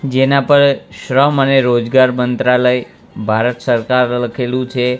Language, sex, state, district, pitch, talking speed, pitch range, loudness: Gujarati, male, Gujarat, Gandhinagar, 125 Hz, 120 wpm, 125-135 Hz, -14 LUFS